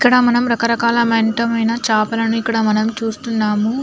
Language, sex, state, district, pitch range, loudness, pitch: Telugu, female, Andhra Pradesh, Anantapur, 220-235 Hz, -16 LUFS, 230 Hz